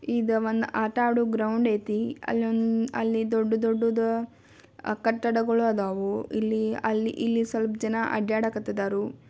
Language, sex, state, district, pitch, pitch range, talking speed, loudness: Kannada, female, Karnataka, Belgaum, 225 Hz, 220-230 Hz, 110 wpm, -26 LUFS